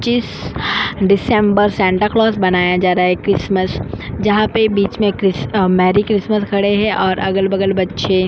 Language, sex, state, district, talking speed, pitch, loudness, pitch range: Hindi, female, Goa, North and South Goa, 150 wpm, 195 Hz, -15 LUFS, 185-210 Hz